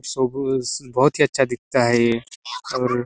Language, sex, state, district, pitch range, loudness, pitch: Hindi, male, Chhattisgarh, Sarguja, 120-130 Hz, -20 LUFS, 125 Hz